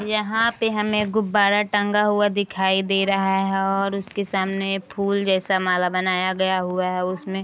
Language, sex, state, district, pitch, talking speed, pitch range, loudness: Hindi, female, Bihar, Araria, 195 Hz, 175 wpm, 190-205 Hz, -21 LUFS